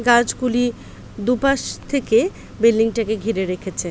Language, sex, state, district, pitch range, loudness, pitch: Bengali, female, West Bengal, Paschim Medinipur, 220-245 Hz, -20 LUFS, 230 Hz